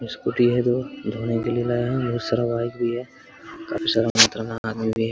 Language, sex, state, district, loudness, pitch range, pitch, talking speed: Hindi, male, Jharkhand, Sahebganj, -22 LUFS, 115-120 Hz, 120 Hz, 235 wpm